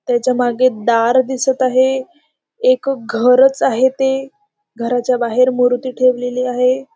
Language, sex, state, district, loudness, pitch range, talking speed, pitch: Marathi, female, Maharashtra, Dhule, -15 LUFS, 245-265 Hz, 110 wpm, 255 Hz